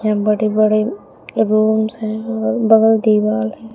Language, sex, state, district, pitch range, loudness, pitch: Hindi, female, Uttar Pradesh, Shamli, 210-220 Hz, -16 LUFS, 215 Hz